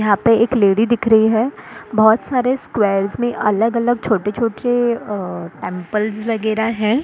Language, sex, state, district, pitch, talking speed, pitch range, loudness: Hindi, female, Maharashtra, Mumbai Suburban, 220 Hz, 155 wpm, 210-235 Hz, -17 LUFS